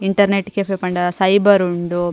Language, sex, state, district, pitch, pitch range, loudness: Tulu, female, Karnataka, Dakshina Kannada, 195 Hz, 180-200 Hz, -16 LUFS